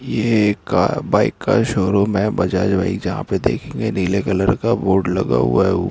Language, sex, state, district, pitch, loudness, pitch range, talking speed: Hindi, male, Uttar Pradesh, Hamirpur, 100 Hz, -18 LUFS, 95-110 Hz, 195 wpm